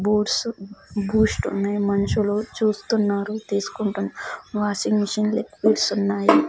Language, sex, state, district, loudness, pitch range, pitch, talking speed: Telugu, female, Andhra Pradesh, Sri Satya Sai, -22 LUFS, 200-220 Hz, 210 Hz, 90 wpm